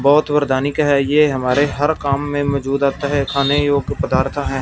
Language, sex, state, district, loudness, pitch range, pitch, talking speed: Hindi, male, Punjab, Fazilka, -17 LUFS, 140-145 Hz, 140 Hz, 195 wpm